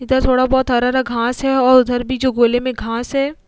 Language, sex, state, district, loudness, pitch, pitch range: Hindi, female, Bihar, Vaishali, -16 LUFS, 255 Hz, 245-260 Hz